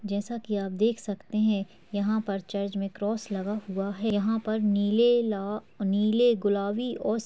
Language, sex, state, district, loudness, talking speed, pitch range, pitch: Hindi, female, Uttar Pradesh, Jyotiba Phule Nagar, -28 LUFS, 190 wpm, 200-220 Hz, 210 Hz